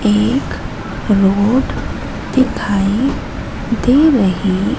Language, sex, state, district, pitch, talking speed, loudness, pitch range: Hindi, female, Madhya Pradesh, Katni, 215 Hz, 65 wpm, -16 LUFS, 200-260 Hz